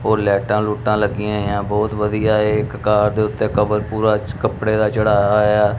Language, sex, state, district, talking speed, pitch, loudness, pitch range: Punjabi, male, Punjab, Kapurthala, 185 wpm, 105 Hz, -18 LUFS, 105-110 Hz